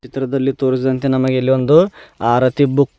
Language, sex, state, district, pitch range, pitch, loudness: Kannada, male, Karnataka, Bidar, 130-135 Hz, 130 Hz, -16 LUFS